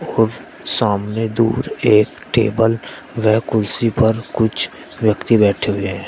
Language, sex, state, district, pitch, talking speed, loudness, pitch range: Hindi, male, Uttar Pradesh, Shamli, 110 Hz, 120 wpm, -17 LUFS, 105-115 Hz